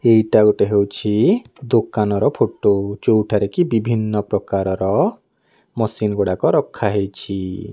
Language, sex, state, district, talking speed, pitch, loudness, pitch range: Odia, male, Odisha, Nuapada, 95 wpm, 105 Hz, -18 LUFS, 100-110 Hz